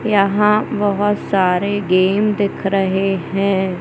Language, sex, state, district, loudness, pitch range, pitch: Hindi, male, Madhya Pradesh, Katni, -17 LUFS, 190-205 Hz, 195 Hz